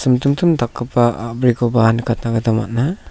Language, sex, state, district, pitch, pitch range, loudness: Garo, male, Meghalaya, South Garo Hills, 120 Hz, 115-125 Hz, -17 LUFS